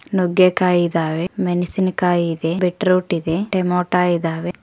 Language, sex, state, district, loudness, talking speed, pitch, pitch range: Kannada, female, Karnataka, Koppal, -18 LUFS, 105 wpm, 180 Hz, 170-185 Hz